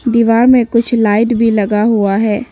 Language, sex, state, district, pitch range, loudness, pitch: Hindi, female, Arunachal Pradesh, Papum Pare, 210-235 Hz, -12 LUFS, 230 Hz